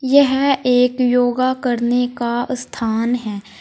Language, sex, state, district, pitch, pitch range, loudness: Hindi, female, Uttar Pradesh, Saharanpur, 245 Hz, 240-255 Hz, -17 LUFS